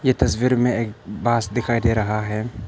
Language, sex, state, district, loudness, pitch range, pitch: Hindi, male, Arunachal Pradesh, Papum Pare, -21 LUFS, 105-120 Hz, 115 Hz